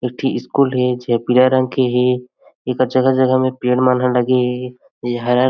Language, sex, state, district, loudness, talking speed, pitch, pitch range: Chhattisgarhi, male, Chhattisgarh, Jashpur, -16 LUFS, 240 wpm, 125 Hz, 125-130 Hz